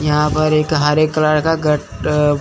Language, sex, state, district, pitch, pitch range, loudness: Hindi, male, Chandigarh, Chandigarh, 150 Hz, 150-155 Hz, -15 LUFS